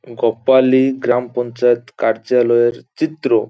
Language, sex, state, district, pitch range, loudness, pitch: Bengali, male, West Bengal, Paschim Medinipur, 120-130 Hz, -16 LUFS, 125 Hz